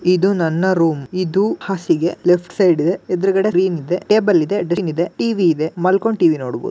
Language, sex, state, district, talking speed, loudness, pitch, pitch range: Kannada, male, Karnataka, Gulbarga, 185 wpm, -17 LUFS, 180 Hz, 170-195 Hz